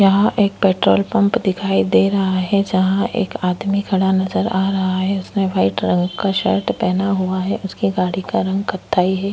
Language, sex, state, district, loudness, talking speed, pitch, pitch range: Hindi, female, Chhattisgarh, Korba, -18 LUFS, 195 wpm, 190 Hz, 185-200 Hz